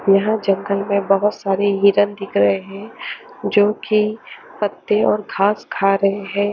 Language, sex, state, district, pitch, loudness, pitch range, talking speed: Hindi, female, Haryana, Charkhi Dadri, 200 Hz, -18 LUFS, 195-210 Hz, 155 wpm